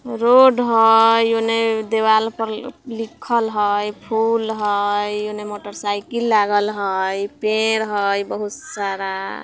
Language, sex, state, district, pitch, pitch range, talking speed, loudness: Bajjika, female, Bihar, Vaishali, 215 Hz, 205-225 Hz, 120 wpm, -18 LUFS